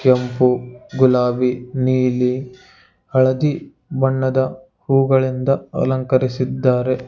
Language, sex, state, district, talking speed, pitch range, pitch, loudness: Kannada, male, Karnataka, Bangalore, 60 wpm, 125-130 Hz, 130 Hz, -18 LUFS